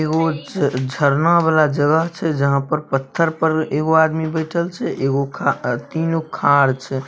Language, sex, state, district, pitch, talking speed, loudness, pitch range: Maithili, male, Bihar, Samastipur, 155 Hz, 150 wpm, -18 LUFS, 140-160 Hz